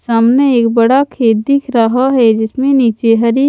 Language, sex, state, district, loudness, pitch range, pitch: Hindi, female, Haryana, Charkhi Dadri, -11 LUFS, 230-265 Hz, 240 Hz